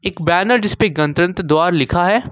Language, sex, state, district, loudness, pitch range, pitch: Hindi, male, Jharkhand, Ranchi, -15 LUFS, 160-190 Hz, 175 Hz